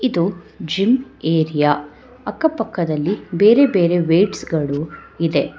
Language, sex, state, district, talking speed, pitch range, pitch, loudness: Kannada, female, Karnataka, Bangalore, 105 wpm, 155-220 Hz, 170 Hz, -18 LUFS